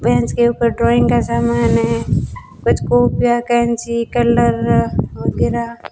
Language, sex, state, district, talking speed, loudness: Hindi, female, Rajasthan, Bikaner, 120 wpm, -16 LUFS